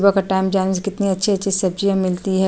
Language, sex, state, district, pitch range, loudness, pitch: Hindi, female, Uttar Pradesh, Jyotiba Phule Nagar, 190-200 Hz, -19 LUFS, 195 Hz